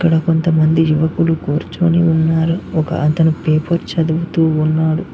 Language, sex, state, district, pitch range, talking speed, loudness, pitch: Telugu, male, Telangana, Mahabubabad, 155-165 Hz, 115 wpm, -15 LUFS, 160 Hz